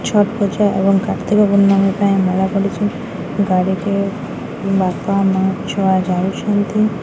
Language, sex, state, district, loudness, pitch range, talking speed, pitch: Odia, female, Odisha, Khordha, -16 LUFS, 190-205 Hz, 120 wpm, 195 Hz